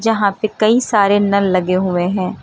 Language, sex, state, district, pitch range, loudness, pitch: Hindi, female, Uttar Pradesh, Lucknow, 185-215 Hz, -15 LUFS, 200 Hz